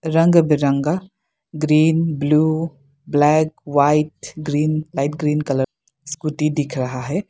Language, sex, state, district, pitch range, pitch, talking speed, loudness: Hindi, female, Arunachal Pradesh, Lower Dibang Valley, 145-155 Hz, 150 Hz, 115 wpm, -19 LUFS